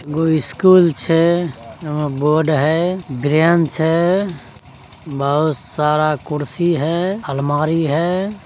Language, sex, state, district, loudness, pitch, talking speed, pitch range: Angika, male, Bihar, Begusarai, -16 LUFS, 155 Hz, 100 wpm, 145-170 Hz